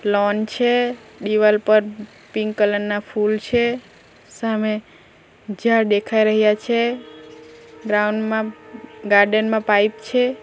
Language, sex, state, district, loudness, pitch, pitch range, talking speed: Gujarati, female, Gujarat, Valsad, -19 LUFS, 215 Hz, 205-225 Hz, 115 wpm